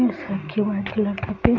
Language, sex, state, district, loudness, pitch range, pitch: Hindi, male, Bihar, East Champaran, -24 LUFS, 200-215 Hz, 205 Hz